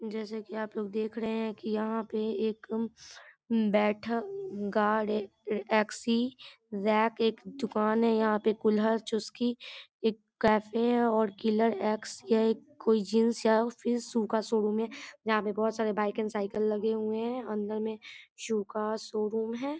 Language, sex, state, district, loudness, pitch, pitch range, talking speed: Maithili, female, Bihar, Darbhanga, -30 LUFS, 220 Hz, 215-225 Hz, 170 wpm